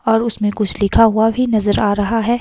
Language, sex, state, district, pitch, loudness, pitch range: Hindi, female, Himachal Pradesh, Shimla, 220 Hz, -15 LUFS, 205-230 Hz